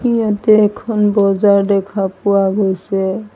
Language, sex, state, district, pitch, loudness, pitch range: Assamese, female, Assam, Sonitpur, 200 Hz, -14 LUFS, 195-215 Hz